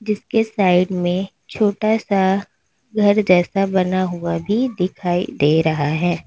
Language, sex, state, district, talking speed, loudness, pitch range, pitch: Hindi, female, Uttar Pradesh, Lalitpur, 135 wpm, -18 LUFS, 175-210 Hz, 185 Hz